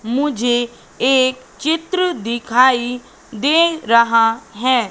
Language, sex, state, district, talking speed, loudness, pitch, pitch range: Hindi, female, Madhya Pradesh, Katni, 85 wpm, -16 LUFS, 250 Hz, 235-285 Hz